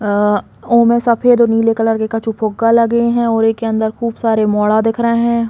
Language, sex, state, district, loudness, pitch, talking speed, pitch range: Bundeli, female, Uttar Pradesh, Hamirpur, -14 LUFS, 225 Hz, 240 wpm, 220-235 Hz